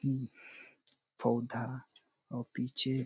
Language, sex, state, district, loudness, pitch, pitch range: Hindi, male, Chhattisgarh, Bastar, -35 LUFS, 125 Hz, 120-130 Hz